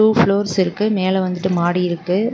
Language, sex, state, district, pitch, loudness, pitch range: Tamil, female, Tamil Nadu, Namakkal, 190 Hz, -18 LUFS, 180-205 Hz